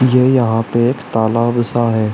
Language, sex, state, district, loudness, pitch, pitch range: Hindi, male, Uttar Pradesh, Shamli, -15 LUFS, 120 Hz, 115-125 Hz